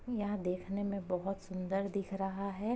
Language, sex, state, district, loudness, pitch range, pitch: Hindi, female, Uttar Pradesh, Jyotiba Phule Nagar, -37 LUFS, 190-200 Hz, 195 Hz